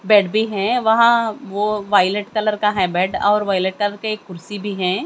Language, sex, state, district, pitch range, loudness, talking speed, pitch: Hindi, female, Haryana, Jhajjar, 195-215 Hz, -18 LUFS, 190 wpm, 205 Hz